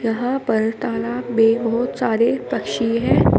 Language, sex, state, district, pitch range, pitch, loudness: Hindi, female, Uttar Pradesh, Shamli, 225-240 Hz, 230 Hz, -20 LUFS